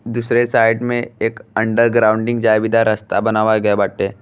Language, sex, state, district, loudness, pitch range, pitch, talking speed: Bhojpuri, male, Uttar Pradesh, Deoria, -16 LUFS, 110-120 Hz, 110 Hz, 170 wpm